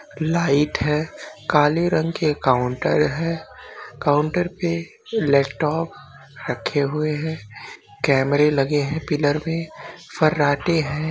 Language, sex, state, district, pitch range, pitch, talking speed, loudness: Hindi, male, Bihar, Bhagalpur, 145-160 Hz, 150 Hz, 115 wpm, -21 LUFS